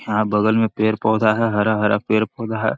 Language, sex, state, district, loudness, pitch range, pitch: Magahi, male, Bihar, Jahanabad, -19 LUFS, 105-110 Hz, 110 Hz